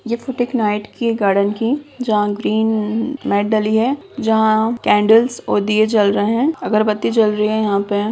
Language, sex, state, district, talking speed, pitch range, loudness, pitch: Hindi, female, Bihar, Sitamarhi, 200 wpm, 210-235 Hz, -17 LUFS, 220 Hz